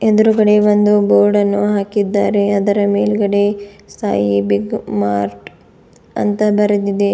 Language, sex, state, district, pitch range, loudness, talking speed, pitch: Kannada, female, Karnataka, Bidar, 200-210 Hz, -14 LUFS, 90 wpm, 205 Hz